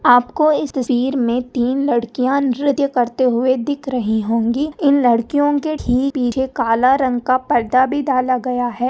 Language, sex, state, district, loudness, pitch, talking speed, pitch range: Hindi, female, Maharashtra, Nagpur, -17 LUFS, 255 Hz, 180 wpm, 245-280 Hz